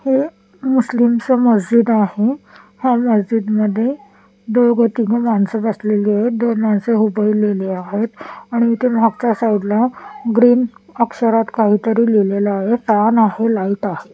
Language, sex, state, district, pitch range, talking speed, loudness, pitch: Marathi, female, Maharashtra, Washim, 210-235 Hz, 125 wpm, -16 LUFS, 225 Hz